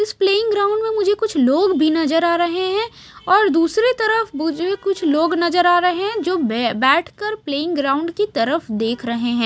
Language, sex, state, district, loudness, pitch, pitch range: Hindi, female, Maharashtra, Mumbai Suburban, -18 LUFS, 350 Hz, 305-405 Hz